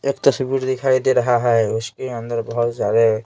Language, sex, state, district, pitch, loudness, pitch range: Hindi, male, Bihar, Patna, 120 Hz, -19 LUFS, 115-130 Hz